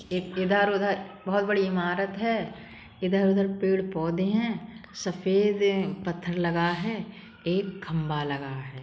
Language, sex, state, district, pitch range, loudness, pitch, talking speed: Bundeli, female, Uttar Pradesh, Budaun, 175-205 Hz, -27 LUFS, 190 Hz, 135 wpm